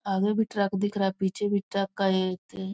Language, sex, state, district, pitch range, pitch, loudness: Hindi, female, Bihar, Muzaffarpur, 190-200 Hz, 195 Hz, -27 LUFS